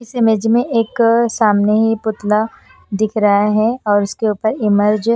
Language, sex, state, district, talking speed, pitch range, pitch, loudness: Hindi, female, Himachal Pradesh, Shimla, 165 wpm, 210-230 Hz, 220 Hz, -15 LUFS